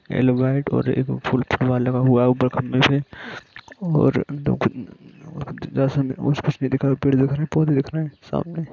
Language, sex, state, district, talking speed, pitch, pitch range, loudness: Hindi, male, Jharkhand, Sahebganj, 110 wpm, 135 Hz, 125-145 Hz, -21 LUFS